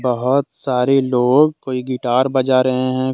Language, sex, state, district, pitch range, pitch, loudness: Hindi, male, Jharkhand, Deoghar, 125-135 Hz, 130 Hz, -17 LUFS